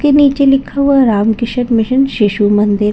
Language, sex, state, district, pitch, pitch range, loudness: Hindi, female, Bihar, Katihar, 245 Hz, 210-275 Hz, -12 LUFS